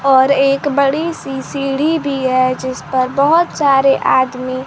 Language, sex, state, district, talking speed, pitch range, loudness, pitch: Hindi, female, Bihar, Kaimur, 165 wpm, 260-280 Hz, -15 LUFS, 275 Hz